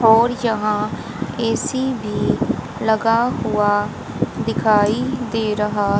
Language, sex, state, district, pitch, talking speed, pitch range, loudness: Hindi, female, Haryana, Jhajjar, 220 Hz, 90 wpm, 210-235 Hz, -19 LUFS